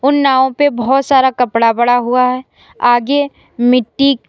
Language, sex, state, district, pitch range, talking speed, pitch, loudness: Hindi, female, Uttar Pradesh, Lalitpur, 245-275 Hz, 155 wpm, 255 Hz, -13 LUFS